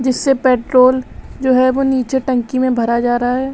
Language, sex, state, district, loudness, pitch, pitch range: Hindi, female, Uttar Pradesh, Lalitpur, -15 LUFS, 255 Hz, 250-265 Hz